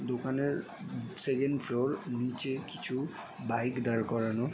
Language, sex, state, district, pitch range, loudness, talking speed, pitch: Bengali, male, West Bengal, Jalpaiguri, 120-135 Hz, -34 LUFS, 120 wpm, 125 Hz